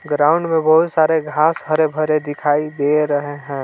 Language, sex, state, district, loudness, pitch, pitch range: Hindi, male, Jharkhand, Palamu, -17 LUFS, 150 Hz, 145-155 Hz